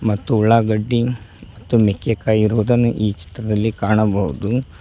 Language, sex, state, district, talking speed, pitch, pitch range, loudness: Kannada, male, Karnataka, Koppal, 100 wpm, 110 Hz, 105-115 Hz, -18 LUFS